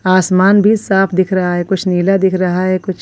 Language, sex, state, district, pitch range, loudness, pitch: Hindi, female, Maharashtra, Washim, 185-195 Hz, -13 LUFS, 185 Hz